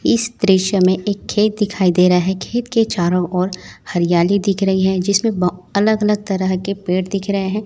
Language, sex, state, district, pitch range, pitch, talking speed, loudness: Hindi, female, Chhattisgarh, Raipur, 185-205 Hz, 195 Hz, 205 wpm, -17 LUFS